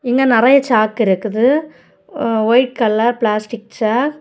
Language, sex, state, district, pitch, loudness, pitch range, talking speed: Tamil, female, Tamil Nadu, Kanyakumari, 235 Hz, -15 LUFS, 220-255 Hz, 100 wpm